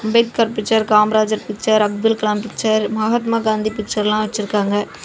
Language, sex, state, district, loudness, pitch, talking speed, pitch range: Tamil, female, Tamil Nadu, Namakkal, -17 LUFS, 215 Hz, 140 wpm, 210-220 Hz